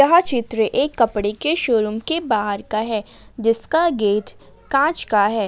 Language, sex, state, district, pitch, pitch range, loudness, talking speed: Hindi, female, Jharkhand, Ranchi, 225 Hz, 215-285 Hz, -20 LUFS, 165 wpm